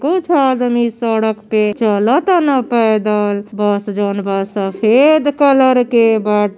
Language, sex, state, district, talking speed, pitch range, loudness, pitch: Bhojpuri, female, Uttar Pradesh, Gorakhpur, 120 wpm, 210-260 Hz, -14 LUFS, 220 Hz